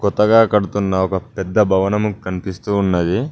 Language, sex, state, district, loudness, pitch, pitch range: Telugu, male, Telangana, Mahabubabad, -17 LUFS, 100 Hz, 95-105 Hz